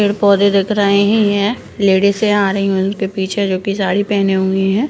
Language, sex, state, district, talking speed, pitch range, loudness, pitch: Hindi, female, Uttarakhand, Uttarkashi, 185 wpm, 195-205 Hz, -14 LUFS, 200 Hz